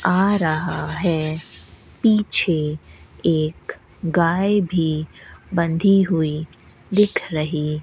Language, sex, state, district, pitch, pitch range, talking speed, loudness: Hindi, female, Rajasthan, Bikaner, 165 Hz, 155-190 Hz, 90 wpm, -20 LUFS